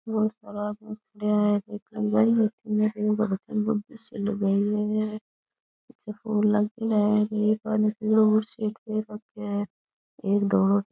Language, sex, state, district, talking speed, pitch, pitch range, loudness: Rajasthani, female, Rajasthan, Churu, 125 wpm, 210 Hz, 210-215 Hz, -26 LUFS